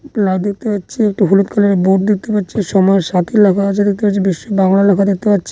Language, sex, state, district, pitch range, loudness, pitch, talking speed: Bengali, male, West Bengal, Dakshin Dinajpur, 195-210 Hz, -14 LUFS, 200 Hz, 205 wpm